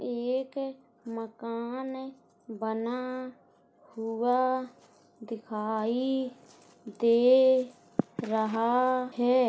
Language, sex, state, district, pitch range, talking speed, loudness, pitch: Hindi, female, Uttar Pradesh, Hamirpur, 225-255 Hz, 55 wpm, -29 LUFS, 245 Hz